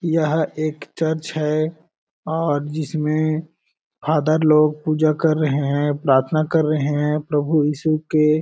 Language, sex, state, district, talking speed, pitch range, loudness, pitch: Hindi, male, Chhattisgarh, Balrampur, 135 wpm, 150-160 Hz, -20 LUFS, 155 Hz